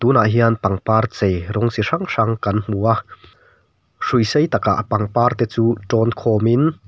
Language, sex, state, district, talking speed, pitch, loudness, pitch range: Mizo, male, Mizoram, Aizawl, 185 wpm, 115 Hz, -18 LUFS, 105-120 Hz